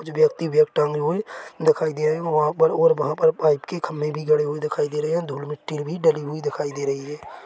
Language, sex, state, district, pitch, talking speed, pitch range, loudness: Hindi, male, Chhattisgarh, Korba, 155 Hz, 275 wpm, 150-175 Hz, -22 LUFS